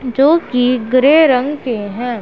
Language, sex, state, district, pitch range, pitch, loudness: Hindi, female, Punjab, Pathankot, 245-285 Hz, 255 Hz, -13 LUFS